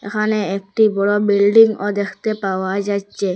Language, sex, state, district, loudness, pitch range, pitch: Bengali, female, Assam, Hailakandi, -17 LUFS, 195-210 Hz, 205 Hz